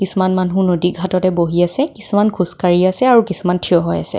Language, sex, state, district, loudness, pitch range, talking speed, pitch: Assamese, female, Assam, Kamrup Metropolitan, -15 LUFS, 180-195 Hz, 215 wpm, 185 Hz